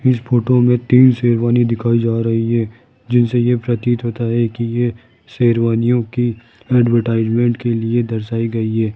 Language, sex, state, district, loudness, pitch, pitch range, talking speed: Hindi, male, Rajasthan, Jaipur, -16 LUFS, 120 Hz, 115-120 Hz, 160 wpm